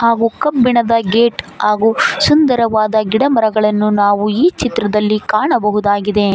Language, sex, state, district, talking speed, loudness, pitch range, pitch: Kannada, female, Karnataka, Koppal, 95 wpm, -13 LUFS, 210-235 Hz, 220 Hz